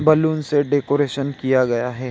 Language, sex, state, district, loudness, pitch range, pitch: Hindi, male, Bihar, Samastipur, -19 LUFS, 130-145 Hz, 140 Hz